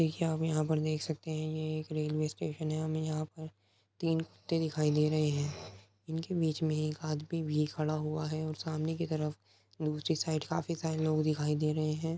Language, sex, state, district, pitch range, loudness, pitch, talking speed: Hindi, male, Uttar Pradesh, Muzaffarnagar, 150-160 Hz, -34 LUFS, 155 Hz, 205 wpm